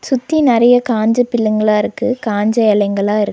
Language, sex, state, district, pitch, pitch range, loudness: Tamil, female, Tamil Nadu, Nilgiris, 225 Hz, 210-245 Hz, -14 LUFS